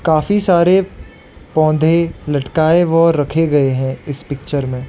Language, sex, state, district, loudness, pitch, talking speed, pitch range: Hindi, male, Arunachal Pradesh, Lower Dibang Valley, -15 LUFS, 155 Hz, 135 wpm, 140-170 Hz